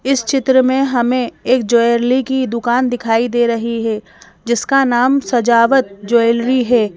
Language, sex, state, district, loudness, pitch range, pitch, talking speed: Hindi, female, Madhya Pradesh, Bhopal, -14 LUFS, 235-260 Hz, 240 Hz, 145 wpm